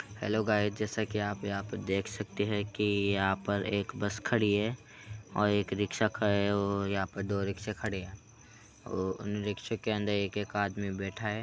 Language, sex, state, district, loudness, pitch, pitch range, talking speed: Hindi, male, Uttar Pradesh, Hamirpur, -32 LUFS, 105 Hz, 100-105 Hz, 180 wpm